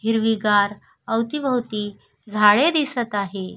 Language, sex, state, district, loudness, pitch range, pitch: Marathi, female, Maharashtra, Sindhudurg, -20 LUFS, 205-240 Hz, 215 Hz